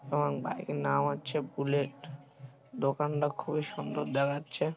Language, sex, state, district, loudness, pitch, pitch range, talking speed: Bengali, male, West Bengal, Malda, -32 LUFS, 145 Hz, 140-145 Hz, 150 wpm